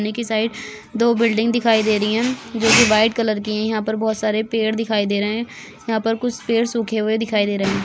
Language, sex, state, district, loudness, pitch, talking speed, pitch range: Hindi, female, Goa, North and South Goa, -19 LUFS, 220 Hz, 245 wpm, 215-230 Hz